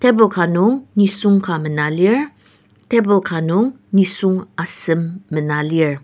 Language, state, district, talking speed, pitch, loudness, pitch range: Ao, Nagaland, Dimapur, 140 wpm, 185 Hz, -17 LUFS, 165-210 Hz